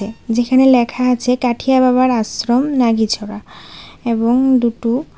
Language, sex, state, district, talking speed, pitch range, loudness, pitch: Bengali, female, Tripura, West Tripura, 105 wpm, 230-255 Hz, -15 LUFS, 245 Hz